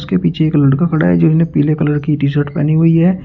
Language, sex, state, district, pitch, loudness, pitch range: Hindi, male, Uttar Pradesh, Shamli, 150 Hz, -13 LUFS, 145-160 Hz